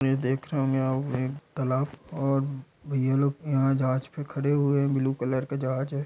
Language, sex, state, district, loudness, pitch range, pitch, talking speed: Hindi, male, Bihar, Darbhanga, -27 LUFS, 130-140 Hz, 135 Hz, 210 wpm